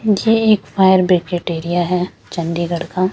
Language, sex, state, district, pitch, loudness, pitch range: Hindi, female, Chandigarh, Chandigarh, 180 Hz, -16 LUFS, 170-190 Hz